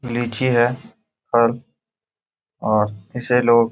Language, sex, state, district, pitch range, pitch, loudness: Hindi, male, Bihar, Jamui, 115-125 Hz, 120 Hz, -19 LUFS